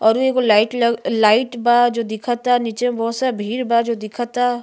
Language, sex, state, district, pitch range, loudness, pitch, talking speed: Bhojpuri, female, Uttar Pradesh, Gorakhpur, 225-245 Hz, -18 LUFS, 235 Hz, 195 wpm